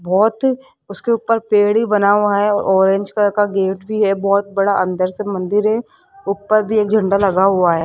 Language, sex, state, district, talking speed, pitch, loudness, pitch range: Hindi, female, Rajasthan, Jaipur, 200 wpm, 205 Hz, -16 LUFS, 195-215 Hz